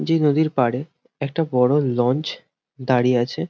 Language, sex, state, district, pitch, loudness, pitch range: Bengali, male, West Bengal, Jhargram, 135 Hz, -20 LUFS, 125-155 Hz